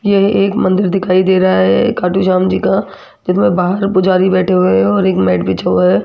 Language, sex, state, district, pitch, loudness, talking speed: Hindi, female, Rajasthan, Jaipur, 185 Hz, -12 LUFS, 230 wpm